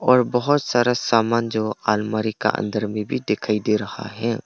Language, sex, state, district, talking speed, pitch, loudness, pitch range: Hindi, male, Arunachal Pradesh, Papum Pare, 190 wpm, 110 Hz, -21 LUFS, 105-120 Hz